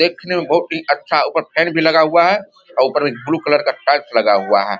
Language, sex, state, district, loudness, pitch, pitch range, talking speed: Hindi, male, Bihar, Vaishali, -16 LUFS, 165 Hz, 155-175 Hz, 275 wpm